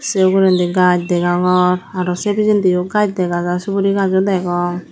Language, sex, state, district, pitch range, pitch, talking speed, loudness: Chakma, female, Tripura, Dhalai, 180-195 Hz, 180 Hz, 135 wpm, -15 LUFS